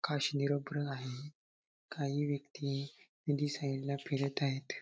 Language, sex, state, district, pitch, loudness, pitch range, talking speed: Marathi, male, Maharashtra, Sindhudurg, 140 Hz, -37 LUFS, 140-145 Hz, 110 wpm